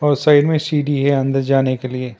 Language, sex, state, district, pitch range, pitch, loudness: Hindi, male, Karnataka, Bangalore, 135-145 Hz, 140 Hz, -16 LUFS